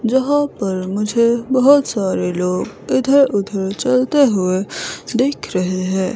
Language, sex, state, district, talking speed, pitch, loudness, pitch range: Hindi, female, Himachal Pradesh, Shimla, 125 wpm, 230 Hz, -17 LUFS, 190-265 Hz